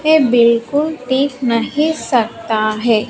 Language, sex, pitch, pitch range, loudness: Hindi, female, 245 Hz, 230-290 Hz, -15 LUFS